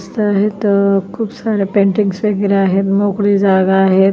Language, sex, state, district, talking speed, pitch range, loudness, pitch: Marathi, female, Maharashtra, Solapur, 145 wpm, 195-205 Hz, -14 LUFS, 200 Hz